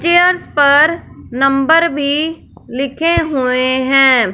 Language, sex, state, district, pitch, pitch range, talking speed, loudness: Hindi, female, Punjab, Fazilka, 285 Hz, 265-325 Hz, 95 wpm, -13 LUFS